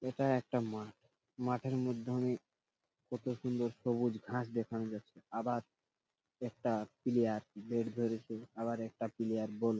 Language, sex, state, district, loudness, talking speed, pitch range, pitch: Bengali, male, West Bengal, Purulia, -38 LUFS, 135 wpm, 110-125 Hz, 115 Hz